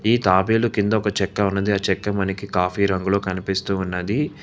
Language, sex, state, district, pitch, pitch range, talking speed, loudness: Telugu, male, Telangana, Hyderabad, 100 Hz, 95-105 Hz, 175 wpm, -21 LUFS